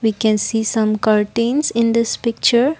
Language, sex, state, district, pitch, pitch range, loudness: English, female, Assam, Kamrup Metropolitan, 230 Hz, 220-235 Hz, -17 LUFS